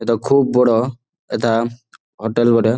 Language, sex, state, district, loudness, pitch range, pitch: Bengali, male, West Bengal, Malda, -17 LUFS, 115-125 Hz, 120 Hz